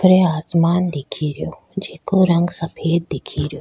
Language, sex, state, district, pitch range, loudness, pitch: Rajasthani, female, Rajasthan, Nagaur, 155-180 Hz, -19 LUFS, 170 Hz